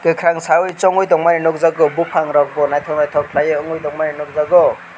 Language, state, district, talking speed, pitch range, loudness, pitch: Kokborok, Tripura, West Tripura, 145 wpm, 150-170 Hz, -15 LUFS, 155 Hz